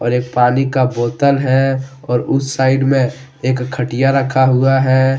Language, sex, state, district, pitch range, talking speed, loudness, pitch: Hindi, male, Jharkhand, Deoghar, 125-135 Hz, 150 wpm, -15 LUFS, 130 Hz